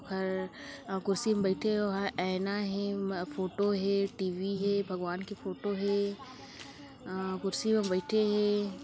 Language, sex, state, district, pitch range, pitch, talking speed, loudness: Chhattisgarhi, female, Chhattisgarh, Kabirdham, 190-205 Hz, 195 Hz, 140 wpm, -32 LUFS